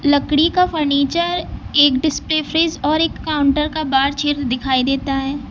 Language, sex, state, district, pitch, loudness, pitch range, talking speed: Hindi, female, Uttar Pradesh, Lucknow, 290 Hz, -17 LUFS, 275-315 Hz, 165 wpm